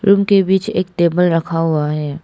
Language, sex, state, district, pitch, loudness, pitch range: Hindi, female, Arunachal Pradesh, Papum Pare, 175 Hz, -15 LUFS, 165-195 Hz